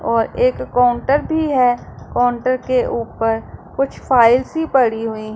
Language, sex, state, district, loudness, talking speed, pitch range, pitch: Hindi, female, Punjab, Pathankot, -17 LUFS, 145 wpm, 230-270 Hz, 245 Hz